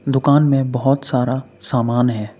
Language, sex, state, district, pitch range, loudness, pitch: Hindi, male, Uttar Pradesh, Saharanpur, 120-135 Hz, -17 LUFS, 130 Hz